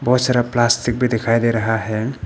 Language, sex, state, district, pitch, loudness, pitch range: Hindi, male, Arunachal Pradesh, Papum Pare, 120 Hz, -18 LUFS, 115-120 Hz